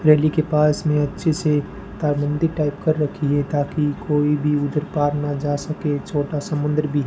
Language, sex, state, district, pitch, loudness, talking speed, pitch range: Hindi, male, Rajasthan, Bikaner, 150 Hz, -21 LUFS, 185 wpm, 145-155 Hz